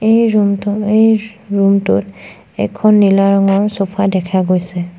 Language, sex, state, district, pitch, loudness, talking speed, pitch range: Assamese, female, Assam, Sonitpur, 200 Hz, -13 LUFS, 120 wpm, 190-210 Hz